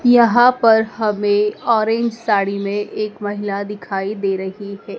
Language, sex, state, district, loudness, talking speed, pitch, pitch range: Hindi, female, Madhya Pradesh, Dhar, -18 LUFS, 145 wpm, 210 Hz, 200-225 Hz